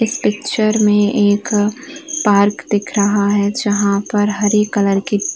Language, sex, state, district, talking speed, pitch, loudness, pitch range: Hindi, female, Uttar Pradesh, Varanasi, 155 wpm, 205 Hz, -15 LUFS, 205-215 Hz